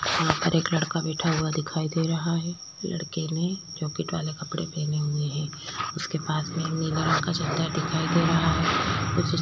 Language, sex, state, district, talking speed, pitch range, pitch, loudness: Hindi, female, Chhattisgarh, Korba, 190 wpm, 155-165 Hz, 160 Hz, -27 LUFS